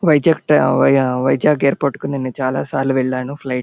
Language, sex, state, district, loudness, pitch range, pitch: Telugu, male, Andhra Pradesh, Anantapur, -16 LUFS, 130-145 Hz, 135 Hz